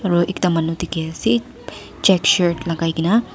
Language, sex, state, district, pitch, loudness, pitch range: Nagamese, female, Nagaland, Dimapur, 175 Hz, -18 LUFS, 165-195 Hz